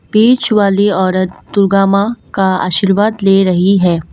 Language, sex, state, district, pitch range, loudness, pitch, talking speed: Hindi, female, Assam, Kamrup Metropolitan, 185-205 Hz, -12 LUFS, 195 Hz, 145 wpm